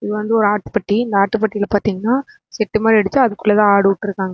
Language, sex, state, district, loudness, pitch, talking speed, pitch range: Tamil, female, Tamil Nadu, Namakkal, -16 LUFS, 210 Hz, 180 wpm, 205-220 Hz